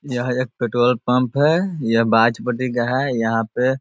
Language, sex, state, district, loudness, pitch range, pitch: Hindi, male, Bihar, Sitamarhi, -19 LUFS, 115-130 Hz, 125 Hz